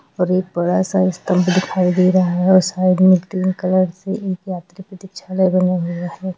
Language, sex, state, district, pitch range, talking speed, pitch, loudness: Hindi, female, Jharkhand, Jamtara, 180-185 Hz, 205 wpm, 185 Hz, -17 LUFS